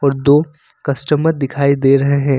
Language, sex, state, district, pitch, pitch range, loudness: Hindi, male, Jharkhand, Ranchi, 140 Hz, 140-150 Hz, -14 LUFS